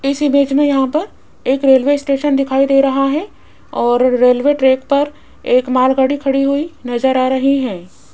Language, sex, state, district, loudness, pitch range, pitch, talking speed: Hindi, female, Rajasthan, Jaipur, -14 LUFS, 260-280 Hz, 275 Hz, 175 wpm